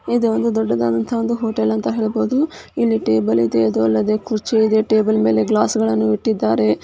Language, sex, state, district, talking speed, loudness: Kannada, female, Karnataka, Dharwad, 165 wpm, -18 LUFS